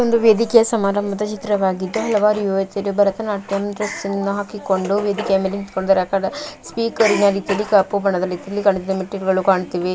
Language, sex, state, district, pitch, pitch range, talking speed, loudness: Kannada, female, Karnataka, Mysore, 200 Hz, 195-210 Hz, 145 wpm, -19 LUFS